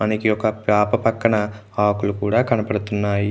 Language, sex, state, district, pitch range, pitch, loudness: Telugu, male, Andhra Pradesh, Krishna, 105-110 Hz, 105 Hz, -20 LUFS